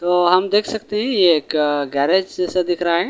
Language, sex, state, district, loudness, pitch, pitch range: Hindi, male, Delhi, New Delhi, -18 LUFS, 180 Hz, 170-190 Hz